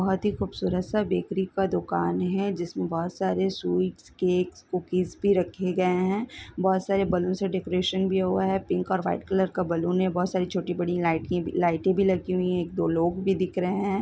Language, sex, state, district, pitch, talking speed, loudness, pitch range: Hindi, female, Bihar, Saran, 185 Hz, 210 wpm, -26 LUFS, 180-190 Hz